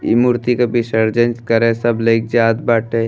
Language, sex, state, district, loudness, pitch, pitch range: Bhojpuri, male, Uttar Pradesh, Deoria, -15 LUFS, 115 Hz, 115-120 Hz